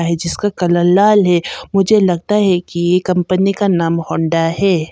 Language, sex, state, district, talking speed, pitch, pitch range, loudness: Hindi, female, Arunachal Pradesh, Papum Pare, 185 wpm, 180 Hz, 170-195 Hz, -14 LUFS